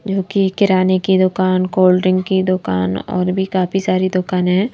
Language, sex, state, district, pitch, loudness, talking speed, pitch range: Hindi, female, Madhya Pradesh, Bhopal, 185 Hz, -16 LUFS, 190 wpm, 185-190 Hz